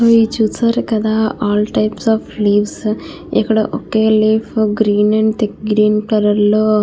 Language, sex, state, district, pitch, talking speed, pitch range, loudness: Telugu, female, Andhra Pradesh, Krishna, 215 Hz, 160 wpm, 210-220 Hz, -15 LUFS